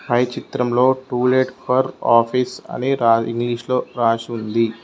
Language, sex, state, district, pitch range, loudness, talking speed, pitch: Telugu, male, Telangana, Mahabubabad, 115-130 Hz, -19 LUFS, 135 wpm, 125 Hz